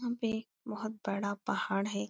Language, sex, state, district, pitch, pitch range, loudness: Hindi, female, Uttar Pradesh, Etah, 215 Hz, 195-225 Hz, -36 LUFS